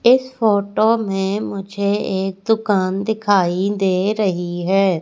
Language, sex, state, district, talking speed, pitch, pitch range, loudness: Hindi, female, Madhya Pradesh, Katni, 120 wpm, 200 Hz, 190-215 Hz, -18 LUFS